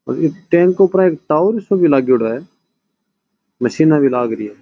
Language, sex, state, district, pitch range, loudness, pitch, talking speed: Rajasthani, male, Rajasthan, Churu, 135-195 Hz, -15 LUFS, 170 Hz, 180 wpm